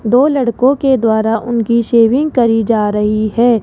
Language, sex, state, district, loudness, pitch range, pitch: Hindi, female, Rajasthan, Jaipur, -13 LUFS, 225-250 Hz, 235 Hz